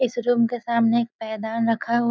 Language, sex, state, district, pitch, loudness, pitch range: Hindi, female, Bihar, Sitamarhi, 235 Hz, -23 LUFS, 230-240 Hz